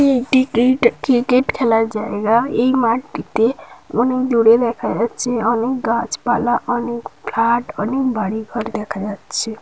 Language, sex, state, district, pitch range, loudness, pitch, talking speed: Bengali, female, West Bengal, North 24 Parganas, 225-250 Hz, -18 LUFS, 235 Hz, 130 wpm